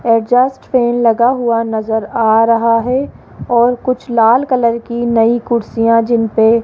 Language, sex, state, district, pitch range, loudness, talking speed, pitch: Hindi, female, Rajasthan, Jaipur, 230-240 Hz, -13 LUFS, 155 wpm, 235 Hz